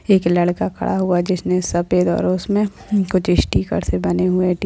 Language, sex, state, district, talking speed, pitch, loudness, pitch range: Hindi, female, Maharashtra, Dhule, 180 wpm, 180 Hz, -18 LUFS, 170-185 Hz